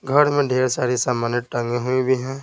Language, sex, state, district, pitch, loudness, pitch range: Hindi, male, Bihar, Patna, 130 Hz, -20 LUFS, 120-135 Hz